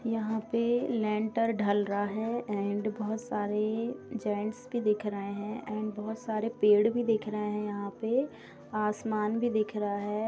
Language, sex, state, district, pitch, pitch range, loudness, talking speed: Hindi, female, Bihar, Gopalganj, 215 Hz, 210-230 Hz, -31 LUFS, 170 wpm